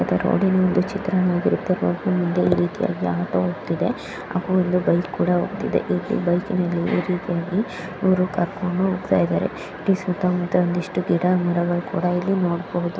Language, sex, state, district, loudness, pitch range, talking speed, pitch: Kannada, female, Karnataka, Dharwad, -22 LUFS, 175-185 Hz, 145 wpm, 180 Hz